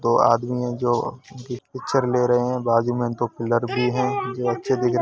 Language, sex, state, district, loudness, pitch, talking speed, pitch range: Hindi, male, Uttar Pradesh, Hamirpur, -22 LUFS, 125 Hz, 215 wpm, 120-125 Hz